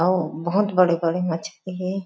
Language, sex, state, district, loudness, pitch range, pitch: Chhattisgarhi, female, Chhattisgarh, Jashpur, -22 LUFS, 170-185 Hz, 180 Hz